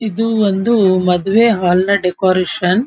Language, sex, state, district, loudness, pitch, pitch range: Kannada, female, Karnataka, Dharwad, -14 LUFS, 195 Hz, 180-220 Hz